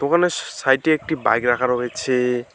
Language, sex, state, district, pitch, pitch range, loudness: Bengali, male, West Bengal, Alipurduar, 130 Hz, 125-155 Hz, -20 LUFS